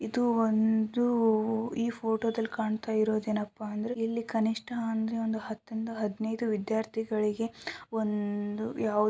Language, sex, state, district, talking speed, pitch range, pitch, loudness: Kannada, female, Karnataka, Shimoga, 120 wpm, 215-225 Hz, 220 Hz, -30 LUFS